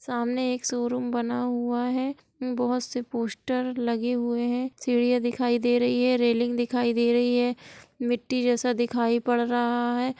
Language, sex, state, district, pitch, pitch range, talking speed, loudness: Hindi, female, Bihar, Gopalganj, 245 Hz, 240-250 Hz, 165 wpm, -26 LUFS